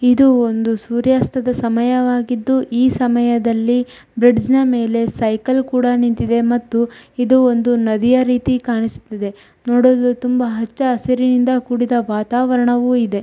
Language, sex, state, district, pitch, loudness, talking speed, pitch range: Kannada, female, Karnataka, Shimoga, 245 Hz, -16 LUFS, 115 wpm, 235-250 Hz